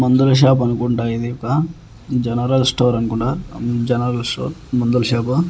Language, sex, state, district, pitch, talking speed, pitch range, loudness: Telugu, male, Andhra Pradesh, Annamaya, 125 Hz, 140 wpm, 120-130 Hz, -18 LUFS